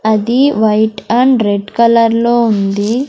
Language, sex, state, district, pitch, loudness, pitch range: Telugu, female, Andhra Pradesh, Sri Satya Sai, 225 Hz, -12 LUFS, 210-235 Hz